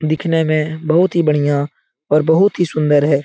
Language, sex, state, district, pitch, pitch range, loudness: Hindi, male, Bihar, Jahanabad, 155 Hz, 150-165 Hz, -15 LUFS